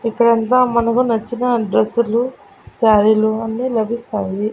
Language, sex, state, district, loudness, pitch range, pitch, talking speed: Telugu, female, Andhra Pradesh, Annamaya, -16 LUFS, 220-240 Hz, 230 Hz, 105 wpm